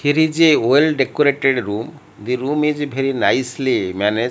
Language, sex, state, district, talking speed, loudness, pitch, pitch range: English, male, Odisha, Malkangiri, 165 wpm, -17 LUFS, 135 Hz, 125-150 Hz